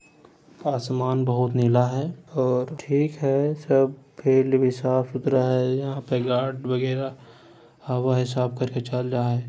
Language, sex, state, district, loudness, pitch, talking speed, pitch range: Hindi, male, Bihar, Jamui, -24 LUFS, 130 Hz, 150 wpm, 125-135 Hz